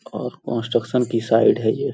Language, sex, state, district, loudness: Hindi, male, Uttar Pradesh, Gorakhpur, -20 LUFS